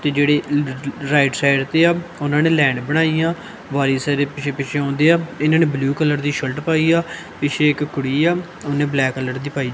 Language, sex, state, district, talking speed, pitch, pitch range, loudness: Punjabi, male, Punjab, Kapurthala, 210 wpm, 145 Hz, 140-160 Hz, -18 LUFS